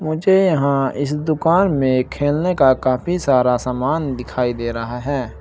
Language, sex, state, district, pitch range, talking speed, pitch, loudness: Hindi, male, Uttar Pradesh, Shamli, 125-155 Hz, 155 wpm, 140 Hz, -18 LUFS